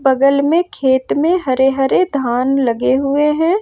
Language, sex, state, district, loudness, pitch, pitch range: Hindi, female, Jharkhand, Ranchi, -15 LUFS, 275 Hz, 260-320 Hz